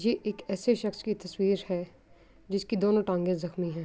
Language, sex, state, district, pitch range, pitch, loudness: Urdu, female, Andhra Pradesh, Anantapur, 180-210 Hz, 195 Hz, -30 LUFS